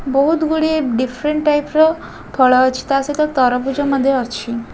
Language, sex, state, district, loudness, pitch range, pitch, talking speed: Odia, female, Odisha, Khordha, -16 LUFS, 255-305 Hz, 275 Hz, 150 wpm